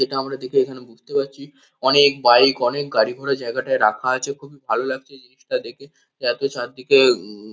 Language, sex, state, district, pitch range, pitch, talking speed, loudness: Bengali, male, West Bengal, Kolkata, 125-140 Hz, 135 Hz, 175 wpm, -19 LUFS